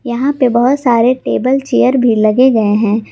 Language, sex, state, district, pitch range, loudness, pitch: Hindi, female, Jharkhand, Garhwa, 225-260 Hz, -12 LUFS, 245 Hz